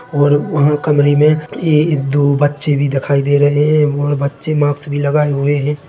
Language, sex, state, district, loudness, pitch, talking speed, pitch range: Hindi, male, Chhattisgarh, Bilaspur, -14 LUFS, 145 Hz, 195 wpm, 145-150 Hz